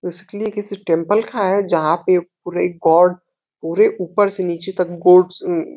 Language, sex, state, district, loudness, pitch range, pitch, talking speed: Hindi, male, Uttar Pradesh, Deoria, -17 LUFS, 175-205 Hz, 180 Hz, 185 wpm